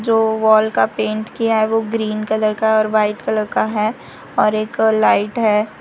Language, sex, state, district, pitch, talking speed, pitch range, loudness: Hindi, female, Gujarat, Valsad, 215 Hz, 195 wpm, 215-220 Hz, -17 LUFS